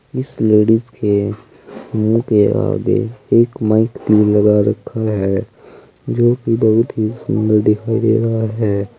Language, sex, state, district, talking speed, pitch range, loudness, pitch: Hindi, male, Uttar Pradesh, Saharanpur, 135 wpm, 105-115 Hz, -15 LUFS, 110 Hz